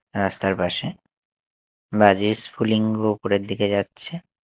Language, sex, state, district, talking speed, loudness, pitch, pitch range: Bengali, male, Chhattisgarh, Raipur, 95 wpm, -20 LUFS, 105 Hz, 100-110 Hz